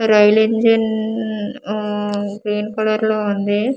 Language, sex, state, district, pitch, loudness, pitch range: Telugu, female, Andhra Pradesh, Manyam, 215 Hz, -18 LUFS, 210-220 Hz